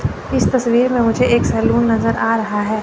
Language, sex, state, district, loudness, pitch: Hindi, female, Chandigarh, Chandigarh, -16 LUFS, 215 Hz